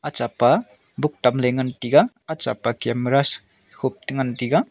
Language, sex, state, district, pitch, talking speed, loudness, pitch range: Wancho, male, Arunachal Pradesh, Longding, 130 Hz, 165 wpm, -21 LUFS, 120-150 Hz